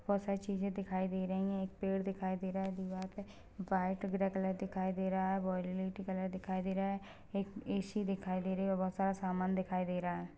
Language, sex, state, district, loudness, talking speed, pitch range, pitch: Hindi, female, Chhattisgarh, Balrampur, -38 LUFS, 245 wpm, 185-195 Hz, 190 Hz